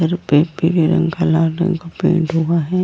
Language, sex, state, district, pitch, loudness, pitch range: Hindi, female, Goa, North and South Goa, 165 Hz, -16 LUFS, 165-175 Hz